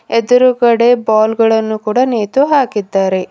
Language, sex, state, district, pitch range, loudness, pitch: Kannada, female, Karnataka, Bidar, 215-245 Hz, -12 LUFS, 230 Hz